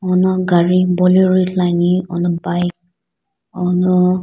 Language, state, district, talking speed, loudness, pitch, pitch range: Sumi, Nagaland, Dimapur, 115 wpm, -15 LUFS, 180 Hz, 175-185 Hz